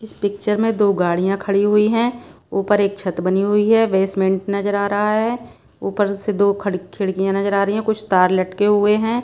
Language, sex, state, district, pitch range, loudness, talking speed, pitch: Hindi, female, Bihar, Patna, 195-210 Hz, -18 LUFS, 215 wpm, 200 Hz